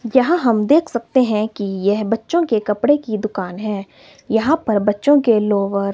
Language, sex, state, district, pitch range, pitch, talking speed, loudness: Hindi, female, Himachal Pradesh, Shimla, 210-270 Hz, 225 Hz, 190 wpm, -17 LUFS